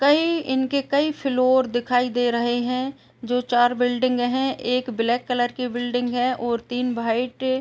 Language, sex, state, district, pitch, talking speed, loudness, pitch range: Hindi, female, Uttar Pradesh, Etah, 250 Hz, 175 wpm, -22 LUFS, 245-260 Hz